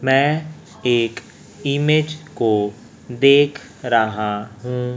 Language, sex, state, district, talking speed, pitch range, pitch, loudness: Hindi, male, Chhattisgarh, Raipur, 85 wpm, 110-145 Hz, 125 Hz, -19 LUFS